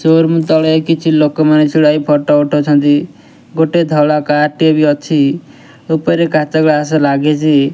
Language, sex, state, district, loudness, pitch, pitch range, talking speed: Odia, male, Odisha, Nuapada, -12 LUFS, 150 Hz, 150-160 Hz, 140 wpm